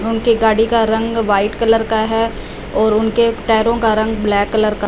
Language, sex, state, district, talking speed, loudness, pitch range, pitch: Hindi, female, Punjab, Fazilka, 195 wpm, -15 LUFS, 215-225 Hz, 220 Hz